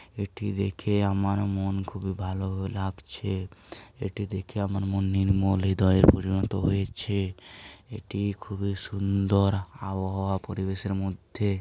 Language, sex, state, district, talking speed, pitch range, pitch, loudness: Bengali, male, West Bengal, Paschim Medinipur, 110 wpm, 95-100 Hz, 100 Hz, -28 LUFS